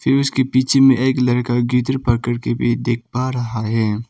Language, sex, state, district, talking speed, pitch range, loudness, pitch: Hindi, male, Arunachal Pradesh, Papum Pare, 205 wpm, 120-130 Hz, -17 LUFS, 125 Hz